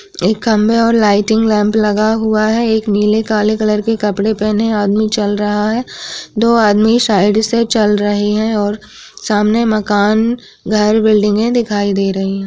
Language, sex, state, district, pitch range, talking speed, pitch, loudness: Hindi, female, Uttar Pradesh, Gorakhpur, 210-220 Hz, 175 wpm, 215 Hz, -13 LUFS